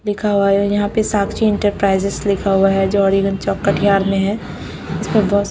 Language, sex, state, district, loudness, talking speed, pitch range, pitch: Hindi, female, Bihar, Katihar, -16 LUFS, 185 wpm, 195-205 Hz, 200 Hz